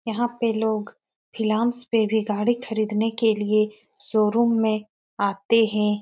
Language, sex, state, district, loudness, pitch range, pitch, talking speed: Hindi, female, Uttar Pradesh, Etah, -23 LUFS, 215-230 Hz, 220 Hz, 140 wpm